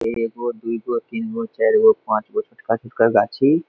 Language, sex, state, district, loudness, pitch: Maithili, male, Bihar, Madhepura, -20 LUFS, 120 Hz